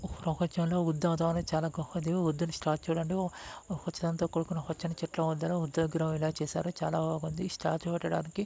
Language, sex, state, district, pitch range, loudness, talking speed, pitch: Telugu, male, Andhra Pradesh, Guntur, 160-175 Hz, -32 LUFS, 85 wpm, 165 Hz